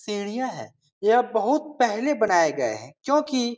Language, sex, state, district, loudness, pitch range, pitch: Hindi, male, Bihar, Supaul, -23 LUFS, 165-260 Hz, 225 Hz